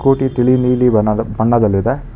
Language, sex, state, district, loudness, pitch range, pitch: Kannada, male, Karnataka, Bangalore, -14 LUFS, 110-130 Hz, 120 Hz